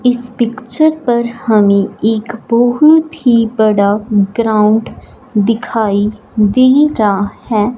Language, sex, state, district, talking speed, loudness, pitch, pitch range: Hindi, female, Punjab, Fazilka, 100 wpm, -12 LUFS, 230 Hz, 215-245 Hz